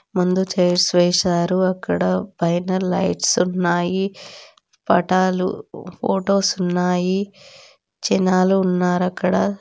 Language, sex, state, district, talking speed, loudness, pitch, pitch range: Telugu, female, Andhra Pradesh, Guntur, 80 wpm, -19 LUFS, 185 Hz, 180-190 Hz